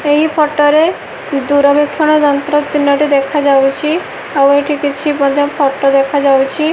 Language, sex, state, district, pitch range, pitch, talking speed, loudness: Odia, female, Odisha, Malkangiri, 280-295 Hz, 290 Hz, 115 wpm, -12 LUFS